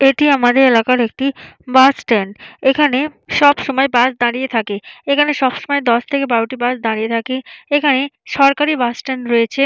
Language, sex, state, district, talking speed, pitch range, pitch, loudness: Bengali, female, West Bengal, Jalpaiguri, 170 wpm, 240-280 Hz, 260 Hz, -15 LUFS